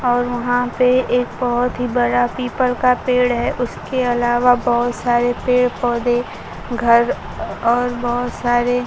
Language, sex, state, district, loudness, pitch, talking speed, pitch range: Hindi, female, Bihar, Kaimur, -18 LUFS, 245 Hz, 140 wpm, 240-250 Hz